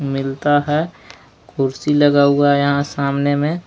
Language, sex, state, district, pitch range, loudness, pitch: Hindi, male, Jharkhand, Palamu, 140-145 Hz, -16 LUFS, 145 Hz